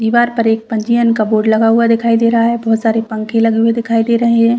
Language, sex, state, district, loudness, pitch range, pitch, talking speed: Hindi, female, Chhattisgarh, Bastar, -13 LUFS, 225-230 Hz, 230 Hz, 275 wpm